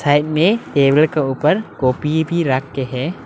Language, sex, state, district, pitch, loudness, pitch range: Hindi, male, Arunachal Pradesh, Lower Dibang Valley, 150 Hz, -17 LUFS, 135-165 Hz